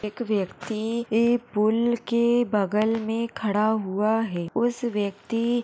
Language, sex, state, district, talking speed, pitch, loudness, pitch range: Hindi, female, Maharashtra, Sindhudurg, 130 wpm, 225 Hz, -25 LUFS, 210-235 Hz